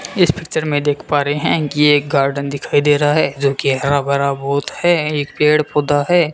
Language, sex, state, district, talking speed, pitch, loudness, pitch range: Hindi, male, Rajasthan, Bikaner, 225 wpm, 145 Hz, -16 LUFS, 140-155 Hz